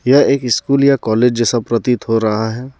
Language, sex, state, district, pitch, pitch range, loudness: Hindi, male, Jharkhand, Deoghar, 120 Hz, 115-135 Hz, -14 LUFS